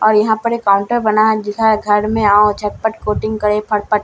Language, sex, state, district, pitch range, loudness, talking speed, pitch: Hindi, female, Bihar, Katihar, 210-220 Hz, -15 LUFS, 225 wpm, 215 Hz